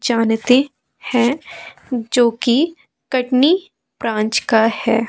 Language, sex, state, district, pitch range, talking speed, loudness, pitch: Hindi, female, Madhya Pradesh, Katni, 225-270 Hz, 95 wpm, -17 LUFS, 245 Hz